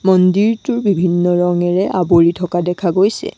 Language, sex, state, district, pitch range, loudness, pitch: Assamese, female, Assam, Sonitpur, 175-195 Hz, -15 LUFS, 180 Hz